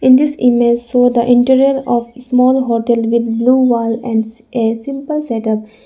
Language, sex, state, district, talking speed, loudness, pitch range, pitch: English, female, Arunachal Pradesh, Lower Dibang Valley, 165 wpm, -14 LUFS, 230-255 Hz, 240 Hz